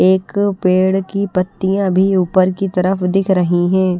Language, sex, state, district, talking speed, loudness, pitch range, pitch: Hindi, female, Haryana, Rohtak, 165 wpm, -15 LUFS, 185-195 Hz, 190 Hz